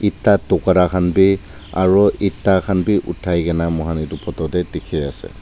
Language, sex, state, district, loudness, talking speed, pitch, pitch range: Nagamese, male, Nagaland, Dimapur, -17 LUFS, 165 wpm, 90 Hz, 80-95 Hz